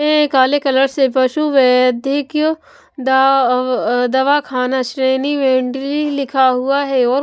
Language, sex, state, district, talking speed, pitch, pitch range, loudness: Hindi, female, Maharashtra, Washim, 115 wpm, 270 Hz, 255-285 Hz, -15 LUFS